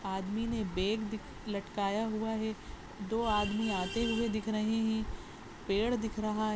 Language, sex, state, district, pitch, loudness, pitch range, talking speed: Hindi, female, Goa, North and South Goa, 215 Hz, -34 LUFS, 205-220 Hz, 165 wpm